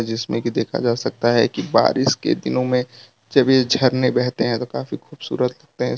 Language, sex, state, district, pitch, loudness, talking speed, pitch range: Hindi, male, Gujarat, Valsad, 125 Hz, -19 LUFS, 230 wpm, 120-130 Hz